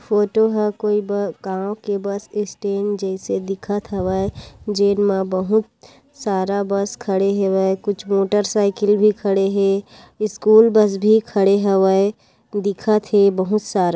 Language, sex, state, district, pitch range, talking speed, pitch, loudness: Chhattisgarhi, female, Chhattisgarh, Korba, 195-210 Hz, 125 wpm, 200 Hz, -19 LUFS